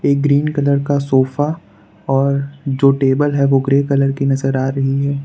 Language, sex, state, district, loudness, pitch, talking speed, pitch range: Hindi, male, Gujarat, Valsad, -16 LUFS, 140 Hz, 185 wpm, 135-140 Hz